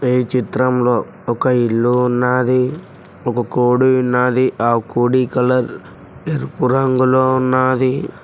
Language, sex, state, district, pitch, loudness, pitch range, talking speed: Telugu, male, Telangana, Mahabubabad, 125 Hz, -16 LUFS, 125-130 Hz, 100 wpm